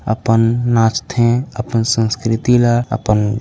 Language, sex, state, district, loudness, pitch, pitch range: Chhattisgarhi, male, Chhattisgarh, Raigarh, -15 LUFS, 115 Hz, 110-120 Hz